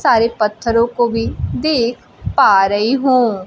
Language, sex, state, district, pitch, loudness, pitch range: Hindi, female, Bihar, Kaimur, 235 Hz, -15 LUFS, 215-250 Hz